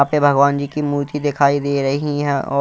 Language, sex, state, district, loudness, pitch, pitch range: Hindi, male, Punjab, Kapurthala, -18 LUFS, 140 Hz, 140-145 Hz